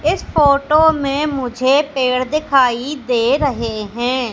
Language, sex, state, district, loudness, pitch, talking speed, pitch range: Hindi, female, Madhya Pradesh, Katni, -16 LUFS, 270 Hz, 125 wpm, 250-295 Hz